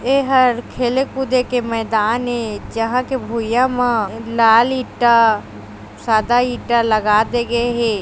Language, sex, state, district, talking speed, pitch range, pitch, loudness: Chhattisgarhi, female, Chhattisgarh, Raigarh, 135 wpm, 225-250 Hz, 235 Hz, -17 LUFS